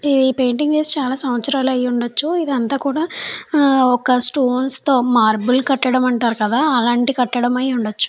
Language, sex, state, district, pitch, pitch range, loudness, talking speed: Telugu, female, Andhra Pradesh, Chittoor, 255 Hz, 245-280 Hz, -17 LUFS, 140 wpm